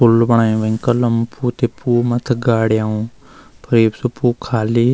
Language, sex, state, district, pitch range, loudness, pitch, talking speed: Garhwali, male, Uttarakhand, Uttarkashi, 110-120 Hz, -16 LUFS, 120 Hz, 180 wpm